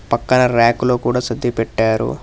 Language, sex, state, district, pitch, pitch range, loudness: Telugu, male, Telangana, Hyderabad, 120 Hz, 115-125 Hz, -16 LUFS